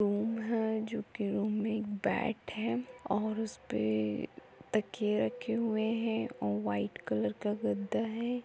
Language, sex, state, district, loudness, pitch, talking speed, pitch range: Hindi, female, Bihar, Gopalganj, -34 LUFS, 215 Hz, 150 wpm, 200-225 Hz